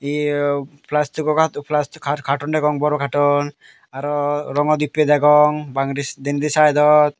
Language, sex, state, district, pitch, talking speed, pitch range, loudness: Chakma, male, Tripura, Dhalai, 145 Hz, 110 wpm, 145-150 Hz, -18 LUFS